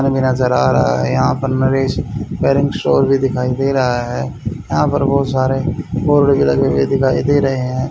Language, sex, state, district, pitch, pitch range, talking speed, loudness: Hindi, male, Haryana, Charkhi Dadri, 130 Hz, 125-135 Hz, 205 wpm, -15 LUFS